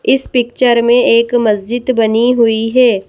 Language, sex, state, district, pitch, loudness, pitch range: Hindi, female, Madhya Pradesh, Bhopal, 240 Hz, -12 LUFS, 225-245 Hz